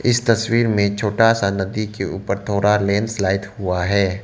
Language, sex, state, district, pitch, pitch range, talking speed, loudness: Hindi, male, Arunachal Pradesh, Lower Dibang Valley, 100 Hz, 100-115 Hz, 170 wpm, -19 LUFS